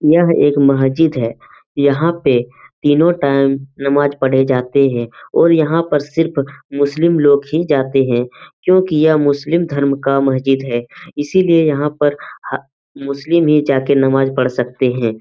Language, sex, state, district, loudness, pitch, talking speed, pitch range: Hindi, male, Jharkhand, Jamtara, -15 LUFS, 140 Hz, 140 wpm, 135-155 Hz